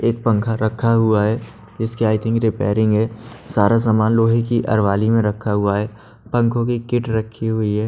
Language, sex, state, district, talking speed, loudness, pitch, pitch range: Hindi, male, Haryana, Charkhi Dadri, 185 wpm, -18 LUFS, 110 Hz, 105-115 Hz